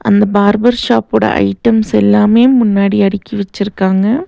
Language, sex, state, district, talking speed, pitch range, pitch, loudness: Tamil, female, Tamil Nadu, Nilgiris, 100 wpm, 190-225 Hz, 205 Hz, -11 LUFS